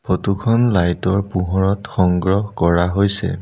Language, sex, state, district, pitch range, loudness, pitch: Assamese, male, Assam, Sonitpur, 90-105 Hz, -17 LUFS, 100 Hz